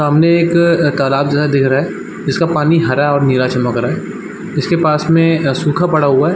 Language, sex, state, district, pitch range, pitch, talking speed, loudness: Hindi, male, Chhattisgarh, Balrampur, 135-165 Hz, 150 Hz, 245 wpm, -13 LUFS